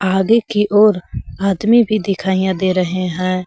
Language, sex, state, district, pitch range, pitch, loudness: Hindi, female, Jharkhand, Garhwa, 185-210 Hz, 190 Hz, -15 LUFS